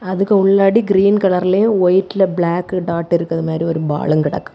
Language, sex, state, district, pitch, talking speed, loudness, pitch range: Tamil, female, Tamil Nadu, Kanyakumari, 185 Hz, 160 wpm, -15 LUFS, 170-195 Hz